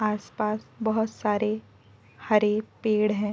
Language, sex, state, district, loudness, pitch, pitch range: Hindi, female, Uttar Pradesh, Deoria, -26 LUFS, 210 Hz, 210-215 Hz